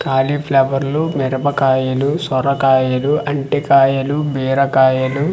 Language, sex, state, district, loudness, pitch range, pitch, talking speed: Telugu, male, Andhra Pradesh, Manyam, -15 LUFS, 130-145 Hz, 135 Hz, 55 wpm